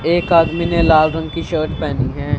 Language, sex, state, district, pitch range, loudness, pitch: Hindi, female, Punjab, Fazilka, 160-170 Hz, -16 LUFS, 165 Hz